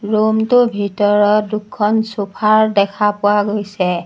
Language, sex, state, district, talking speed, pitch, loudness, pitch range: Assamese, female, Assam, Sonitpur, 120 wpm, 210 Hz, -15 LUFS, 205-215 Hz